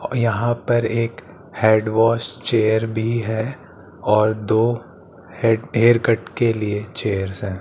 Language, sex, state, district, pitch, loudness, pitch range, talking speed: Hindi, male, Chandigarh, Chandigarh, 110 Hz, -20 LUFS, 105-115 Hz, 140 wpm